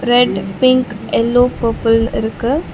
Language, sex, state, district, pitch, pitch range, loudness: Tamil, female, Tamil Nadu, Chennai, 235 Hz, 225-250 Hz, -15 LUFS